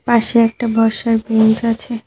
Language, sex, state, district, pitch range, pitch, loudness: Bengali, female, West Bengal, Cooch Behar, 225-235 Hz, 230 Hz, -15 LUFS